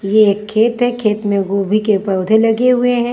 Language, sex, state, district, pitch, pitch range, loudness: Hindi, female, Maharashtra, Washim, 215 Hz, 200-240 Hz, -14 LUFS